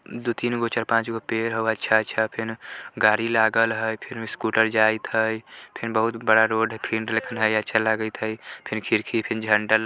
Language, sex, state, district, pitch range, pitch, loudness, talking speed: Bajjika, male, Bihar, Vaishali, 110-115 Hz, 110 Hz, -23 LUFS, 190 wpm